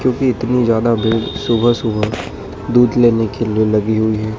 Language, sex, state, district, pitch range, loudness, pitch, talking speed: Hindi, male, Madhya Pradesh, Dhar, 110-120 Hz, -15 LUFS, 110 Hz, 180 wpm